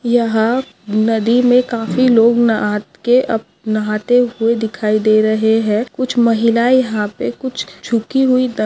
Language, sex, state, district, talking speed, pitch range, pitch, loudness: Hindi, female, Maharashtra, Nagpur, 150 wpm, 215-245 Hz, 230 Hz, -15 LUFS